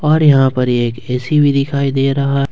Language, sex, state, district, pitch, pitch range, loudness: Hindi, male, Jharkhand, Ranchi, 140 Hz, 125-140 Hz, -14 LUFS